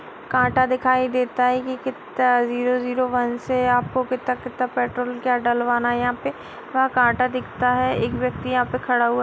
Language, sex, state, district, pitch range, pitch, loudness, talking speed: Hindi, female, Bihar, Darbhanga, 245-255 Hz, 250 Hz, -21 LUFS, 190 wpm